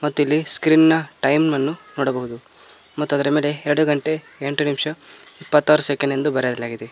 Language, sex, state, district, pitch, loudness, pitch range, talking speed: Kannada, male, Karnataka, Koppal, 145 Hz, -19 LUFS, 140-155 Hz, 155 wpm